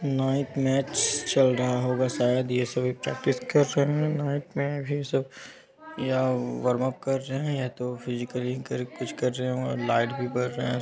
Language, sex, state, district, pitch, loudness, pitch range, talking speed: Maithili, male, Bihar, Supaul, 130 Hz, -27 LUFS, 125-140 Hz, 190 wpm